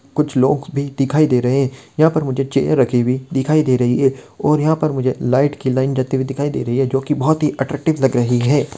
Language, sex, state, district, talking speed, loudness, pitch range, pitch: Hindi, male, Bihar, Darbhanga, 255 wpm, -17 LUFS, 130-150 Hz, 135 Hz